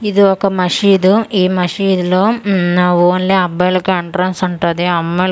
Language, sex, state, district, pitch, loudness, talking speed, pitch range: Telugu, female, Andhra Pradesh, Manyam, 185 Hz, -13 LUFS, 145 wpm, 180-195 Hz